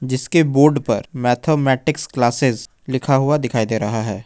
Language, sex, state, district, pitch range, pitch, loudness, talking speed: Hindi, male, Jharkhand, Ranchi, 120-150 Hz, 130 Hz, -18 LUFS, 155 wpm